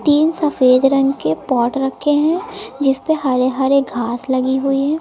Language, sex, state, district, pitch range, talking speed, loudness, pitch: Hindi, female, Uttar Pradesh, Lucknow, 260-295 Hz, 180 wpm, -16 LUFS, 270 Hz